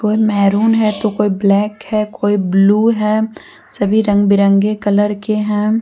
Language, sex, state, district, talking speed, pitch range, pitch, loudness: Hindi, female, Jharkhand, Deoghar, 165 wpm, 200-215 Hz, 210 Hz, -14 LUFS